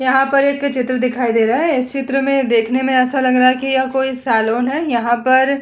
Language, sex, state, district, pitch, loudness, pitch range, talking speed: Hindi, female, Uttar Pradesh, Hamirpur, 260 Hz, -15 LUFS, 250-270 Hz, 265 wpm